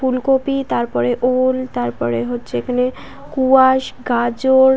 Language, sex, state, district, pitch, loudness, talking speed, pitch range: Bengali, female, West Bengal, Paschim Medinipur, 255 Hz, -17 LUFS, 100 wpm, 235-265 Hz